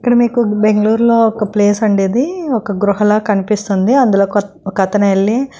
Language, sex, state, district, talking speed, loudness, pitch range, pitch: Telugu, female, Andhra Pradesh, Srikakulam, 170 wpm, -13 LUFS, 200-235 Hz, 210 Hz